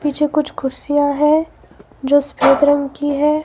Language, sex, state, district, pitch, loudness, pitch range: Hindi, male, Himachal Pradesh, Shimla, 290 Hz, -16 LUFS, 285-300 Hz